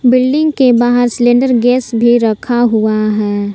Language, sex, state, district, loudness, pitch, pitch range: Hindi, female, Jharkhand, Palamu, -11 LUFS, 240 Hz, 220-250 Hz